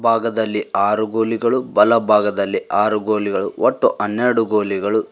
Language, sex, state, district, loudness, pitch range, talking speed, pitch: Kannada, male, Karnataka, Koppal, -18 LUFS, 105-115 Hz, 130 wpm, 110 Hz